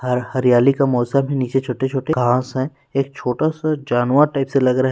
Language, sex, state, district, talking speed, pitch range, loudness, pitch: Hindi, male, Chhattisgarh, Rajnandgaon, 205 wpm, 125-140 Hz, -18 LUFS, 130 Hz